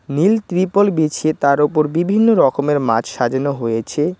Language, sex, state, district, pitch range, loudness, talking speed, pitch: Bengali, male, West Bengal, Cooch Behar, 140-185 Hz, -16 LUFS, 145 wpm, 150 Hz